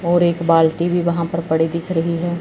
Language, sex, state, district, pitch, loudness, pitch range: Hindi, female, Chandigarh, Chandigarh, 170 Hz, -18 LUFS, 165-175 Hz